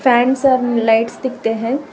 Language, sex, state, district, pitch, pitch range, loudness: Hindi, female, Telangana, Hyderabad, 245 Hz, 230-260 Hz, -16 LUFS